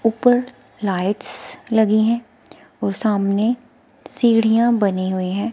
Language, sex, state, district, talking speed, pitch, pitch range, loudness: Hindi, female, Himachal Pradesh, Shimla, 110 wpm, 220 Hz, 200-240 Hz, -19 LUFS